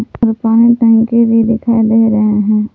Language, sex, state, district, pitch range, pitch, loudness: Hindi, female, Jharkhand, Palamu, 220-230 Hz, 225 Hz, -11 LUFS